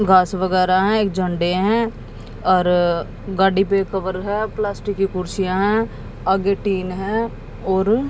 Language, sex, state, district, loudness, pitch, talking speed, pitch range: Hindi, female, Haryana, Jhajjar, -19 LUFS, 190 Hz, 140 wpm, 185-205 Hz